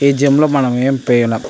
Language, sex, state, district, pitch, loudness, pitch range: Telugu, male, Andhra Pradesh, Anantapur, 135 Hz, -13 LUFS, 120-140 Hz